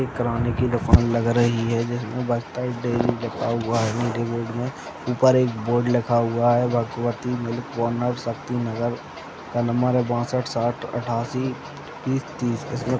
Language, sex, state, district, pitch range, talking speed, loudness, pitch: Hindi, male, Bihar, Madhepura, 115-125 Hz, 155 wpm, -23 LUFS, 120 Hz